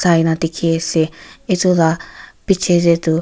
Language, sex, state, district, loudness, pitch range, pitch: Nagamese, female, Nagaland, Kohima, -16 LUFS, 165-180 Hz, 165 Hz